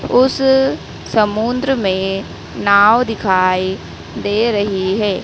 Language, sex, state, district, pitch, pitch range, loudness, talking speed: Hindi, female, Madhya Pradesh, Dhar, 205 Hz, 195-240 Hz, -15 LUFS, 90 wpm